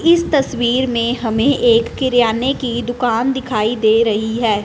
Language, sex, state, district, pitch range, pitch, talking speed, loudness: Hindi, female, Punjab, Fazilka, 225-260 Hz, 240 Hz, 155 wpm, -16 LUFS